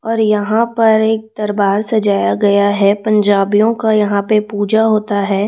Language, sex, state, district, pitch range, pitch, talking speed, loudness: Hindi, female, Chhattisgarh, Raipur, 200-220 Hz, 210 Hz, 165 wpm, -14 LUFS